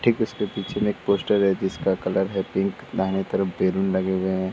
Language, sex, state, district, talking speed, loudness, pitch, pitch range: Hindi, male, Uttar Pradesh, Muzaffarnagar, 225 wpm, -24 LUFS, 95 Hz, 95-100 Hz